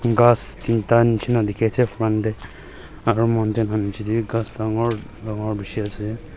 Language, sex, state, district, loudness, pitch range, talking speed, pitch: Nagamese, male, Nagaland, Dimapur, -21 LUFS, 105-115 Hz, 180 wpm, 110 Hz